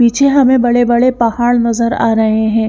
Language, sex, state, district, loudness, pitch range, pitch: Hindi, female, Chandigarh, Chandigarh, -12 LUFS, 230-245 Hz, 235 Hz